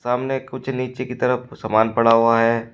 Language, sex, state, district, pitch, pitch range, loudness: Hindi, male, Uttar Pradesh, Shamli, 125 Hz, 115-130 Hz, -20 LUFS